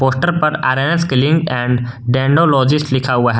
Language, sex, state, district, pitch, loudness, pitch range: Hindi, male, Jharkhand, Garhwa, 135 Hz, -15 LUFS, 125-155 Hz